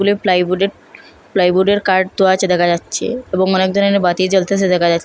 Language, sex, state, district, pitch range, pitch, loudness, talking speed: Bengali, female, Assam, Hailakandi, 180-195 Hz, 190 Hz, -15 LUFS, 165 wpm